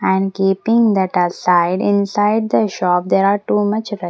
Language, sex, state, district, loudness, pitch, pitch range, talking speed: English, female, Maharashtra, Mumbai Suburban, -16 LUFS, 195 Hz, 180-205 Hz, 190 wpm